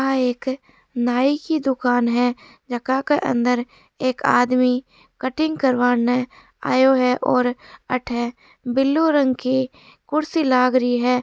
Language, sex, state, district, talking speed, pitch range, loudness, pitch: Marwari, female, Rajasthan, Churu, 130 wpm, 245-270 Hz, -20 LUFS, 255 Hz